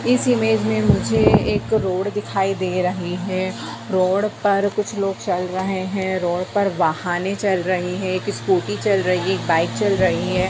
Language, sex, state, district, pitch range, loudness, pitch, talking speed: Hindi, female, Bihar, Jamui, 185-205 Hz, -20 LUFS, 190 Hz, 190 wpm